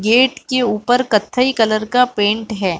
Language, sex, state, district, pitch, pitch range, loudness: Hindi, female, Chhattisgarh, Balrampur, 225 Hz, 210-250 Hz, -16 LUFS